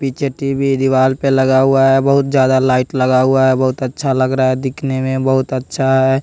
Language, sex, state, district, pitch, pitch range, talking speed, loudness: Hindi, male, Bihar, West Champaran, 130 Hz, 130-135 Hz, 220 wpm, -14 LUFS